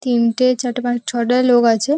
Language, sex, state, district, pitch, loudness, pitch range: Bengali, female, West Bengal, North 24 Parganas, 245 Hz, -16 LUFS, 235-255 Hz